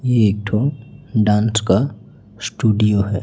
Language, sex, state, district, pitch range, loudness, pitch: Hindi, male, Chhattisgarh, Raipur, 105-120 Hz, -18 LUFS, 110 Hz